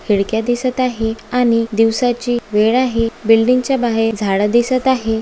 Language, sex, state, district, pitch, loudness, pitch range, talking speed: Marathi, female, Maharashtra, Aurangabad, 230 Hz, -16 LUFS, 225-250 Hz, 150 wpm